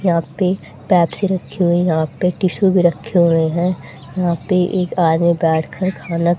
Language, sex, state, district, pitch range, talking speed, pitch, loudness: Hindi, female, Haryana, Charkhi Dadri, 165-185 Hz, 190 wpm, 175 Hz, -17 LUFS